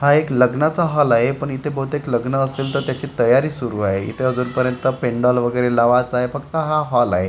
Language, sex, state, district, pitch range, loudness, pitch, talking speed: Marathi, male, Maharashtra, Gondia, 120-145 Hz, -18 LUFS, 130 Hz, 205 wpm